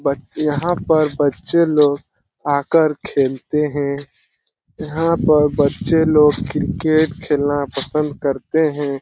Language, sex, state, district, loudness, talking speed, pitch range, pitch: Hindi, male, Bihar, Lakhisarai, -17 LUFS, 115 wpm, 140-160 Hz, 150 Hz